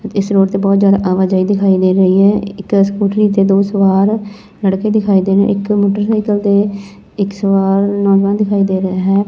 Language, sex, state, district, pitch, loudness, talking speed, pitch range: Punjabi, female, Punjab, Fazilka, 200 Hz, -13 LUFS, 195 wpm, 195-205 Hz